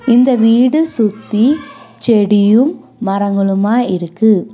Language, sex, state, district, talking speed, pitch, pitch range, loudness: Tamil, female, Tamil Nadu, Nilgiris, 80 wpm, 225 Hz, 205-250 Hz, -13 LUFS